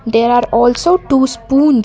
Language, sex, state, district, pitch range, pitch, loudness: English, female, Karnataka, Bangalore, 235-275 Hz, 245 Hz, -12 LUFS